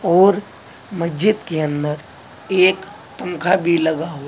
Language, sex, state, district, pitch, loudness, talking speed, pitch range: Hindi, male, Uttar Pradesh, Saharanpur, 170 Hz, -18 LUFS, 125 wpm, 160-190 Hz